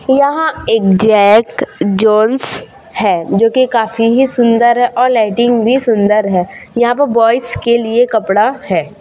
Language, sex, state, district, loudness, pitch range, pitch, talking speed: Hindi, female, Chhattisgarh, Raipur, -12 LUFS, 215-245 Hz, 230 Hz, 145 wpm